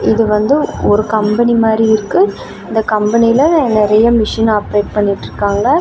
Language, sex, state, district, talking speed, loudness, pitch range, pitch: Tamil, female, Tamil Nadu, Namakkal, 125 wpm, -12 LUFS, 210-230 Hz, 220 Hz